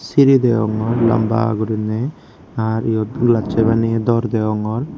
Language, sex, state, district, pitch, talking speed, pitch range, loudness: Chakma, male, Tripura, Unakoti, 110 Hz, 120 wpm, 110-120 Hz, -17 LUFS